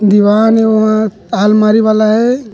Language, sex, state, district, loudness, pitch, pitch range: Chhattisgarhi, male, Chhattisgarh, Rajnandgaon, -10 LUFS, 215 Hz, 210-220 Hz